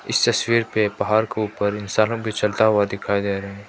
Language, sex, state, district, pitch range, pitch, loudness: Hindi, male, Manipur, Imphal West, 100-110 Hz, 105 Hz, -21 LUFS